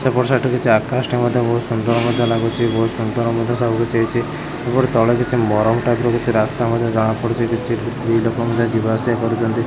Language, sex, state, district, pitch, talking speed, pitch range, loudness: Odia, male, Odisha, Khordha, 115 Hz, 205 wpm, 115-120 Hz, -18 LUFS